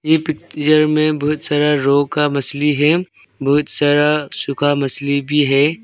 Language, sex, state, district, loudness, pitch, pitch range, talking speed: Hindi, male, Arunachal Pradesh, Longding, -16 LUFS, 150 Hz, 145-155 Hz, 155 wpm